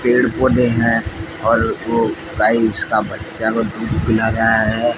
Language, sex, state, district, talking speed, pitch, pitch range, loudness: Hindi, male, Odisha, Sambalpur, 155 wpm, 115 Hz, 110-115 Hz, -17 LUFS